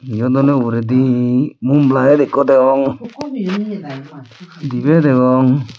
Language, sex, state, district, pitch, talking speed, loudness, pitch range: Chakma, male, Tripura, Dhalai, 135 Hz, 95 wpm, -14 LUFS, 130-145 Hz